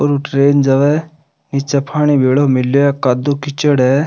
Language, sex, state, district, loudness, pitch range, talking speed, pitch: Rajasthani, male, Rajasthan, Nagaur, -14 LUFS, 135-145 Hz, 150 wpm, 140 Hz